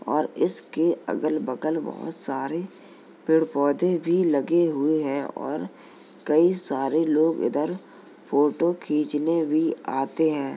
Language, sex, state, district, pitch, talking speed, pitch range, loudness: Hindi, male, Uttar Pradesh, Jalaun, 155 Hz, 125 wpm, 145-165 Hz, -24 LUFS